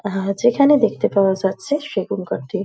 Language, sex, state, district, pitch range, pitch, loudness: Bengali, female, West Bengal, Dakshin Dinajpur, 195-285 Hz, 205 Hz, -18 LUFS